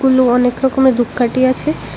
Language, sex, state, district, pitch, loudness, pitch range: Bengali, female, Tripura, West Tripura, 255 Hz, -14 LUFS, 245-265 Hz